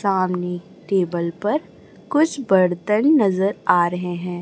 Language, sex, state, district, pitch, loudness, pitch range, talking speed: Hindi, male, Chhattisgarh, Raipur, 185 Hz, -20 LUFS, 175-210 Hz, 120 wpm